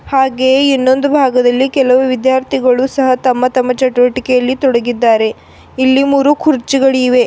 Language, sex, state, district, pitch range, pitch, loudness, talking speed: Kannada, female, Karnataka, Bidar, 250-270 Hz, 260 Hz, -12 LUFS, 105 wpm